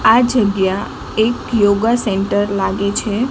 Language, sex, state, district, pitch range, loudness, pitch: Gujarati, female, Gujarat, Gandhinagar, 200-230 Hz, -16 LUFS, 205 Hz